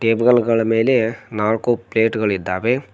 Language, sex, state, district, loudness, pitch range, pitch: Kannada, male, Karnataka, Koppal, -18 LUFS, 110-120 Hz, 115 Hz